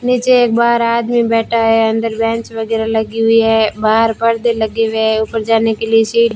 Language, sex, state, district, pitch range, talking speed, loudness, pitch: Hindi, female, Rajasthan, Bikaner, 225-230 Hz, 215 wpm, -14 LUFS, 225 Hz